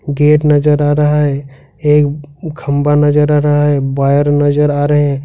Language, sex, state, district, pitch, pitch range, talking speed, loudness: Hindi, male, Jharkhand, Ranchi, 145 Hz, 145-150 Hz, 185 wpm, -12 LUFS